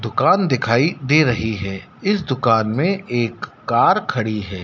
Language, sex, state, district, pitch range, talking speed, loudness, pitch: Hindi, male, Madhya Pradesh, Dhar, 110-155 Hz, 155 wpm, -18 LUFS, 120 Hz